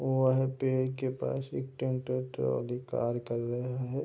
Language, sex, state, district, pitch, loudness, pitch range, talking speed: Hindi, male, Bihar, Sitamarhi, 125 Hz, -32 LUFS, 120-130 Hz, 160 wpm